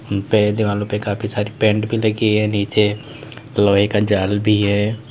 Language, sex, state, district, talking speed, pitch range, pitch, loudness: Hindi, male, Uttar Pradesh, Lalitpur, 155 wpm, 105-110 Hz, 105 Hz, -18 LUFS